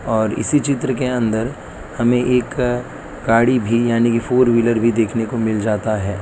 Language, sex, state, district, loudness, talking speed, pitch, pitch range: Hindi, male, Gujarat, Valsad, -18 LUFS, 195 wpm, 115 Hz, 110-125 Hz